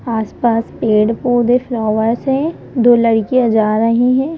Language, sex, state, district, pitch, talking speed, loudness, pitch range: Hindi, female, Madhya Pradesh, Bhopal, 235 Hz, 135 wpm, -14 LUFS, 225-250 Hz